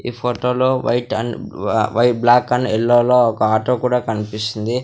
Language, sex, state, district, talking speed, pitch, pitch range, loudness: Telugu, male, Andhra Pradesh, Sri Satya Sai, 160 wpm, 120 Hz, 115-125 Hz, -17 LUFS